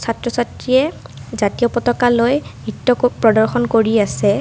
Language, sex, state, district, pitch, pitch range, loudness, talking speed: Assamese, female, Assam, Kamrup Metropolitan, 240 Hz, 225-245 Hz, -16 LUFS, 120 wpm